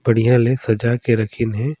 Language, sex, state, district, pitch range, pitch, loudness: Surgujia, male, Chhattisgarh, Sarguja, 115-125 Hz, 120 Hz, -18 LUFS